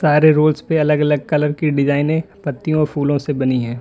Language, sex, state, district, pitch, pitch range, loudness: Hindi, male, Uttar Pradesh, Lalitpur, 150 Hz, 145-155 Hz, -17 LUFS